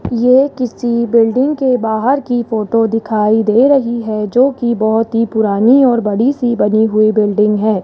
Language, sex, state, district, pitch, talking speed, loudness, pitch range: Hindi, male, Rajasthan, Jaipur, 230 Hz, 170 wpm, -13 LUFS, 215-250 Hz